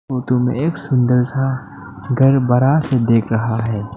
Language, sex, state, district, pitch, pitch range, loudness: Hindi, male, Arunachal Pradesh, Lower Dibang Valley, 125 Hz, 115-135 Hz, -16 LUFS